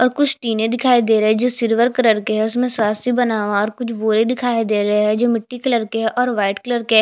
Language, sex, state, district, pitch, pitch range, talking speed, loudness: Hindi, female, Chhattisgarh, Jashpur, 230 Hz, 215-245 Hz, 280 wpm, -17 LUFS